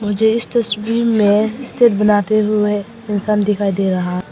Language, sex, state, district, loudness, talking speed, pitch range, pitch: Hindi, female, Arunachal Pradesh, Papum Pare, -16 LUFS, 155 wpm, 205-225 Hz, 210 Hz